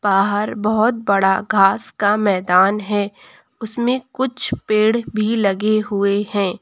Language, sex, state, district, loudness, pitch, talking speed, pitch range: Hindi, female, Uttar Pradesh, Lucknow, -18 LUFS, 210 Hz, 125 wpm, 200-220 Hz